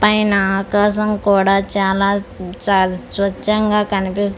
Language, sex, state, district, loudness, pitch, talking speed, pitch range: Telugu, female, Andhra Pradesh, Manyam, -16 LUFS, 200 Hz, 95 wpm, 195-210 Hz